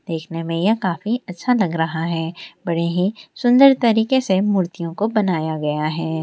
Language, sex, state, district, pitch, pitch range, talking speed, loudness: Hindi, female, Maharashtra, Aurangabad, 180 Hz, 165-215 Hz, 155 wpm, -19 LUFS